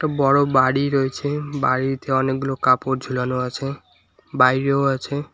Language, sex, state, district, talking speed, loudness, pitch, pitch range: Bengali, male, West Bengal, Alipurduar, 110 wpm, -20 LUFS, 135 Hz, 130-140 Hz